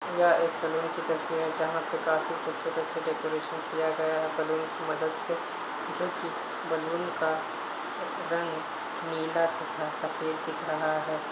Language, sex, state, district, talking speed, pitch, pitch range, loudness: Hindi, male, Uttar Pradesh, Hamirpur, 160 wpm, 160 Hz, 160-165 Hz, -31 LUFS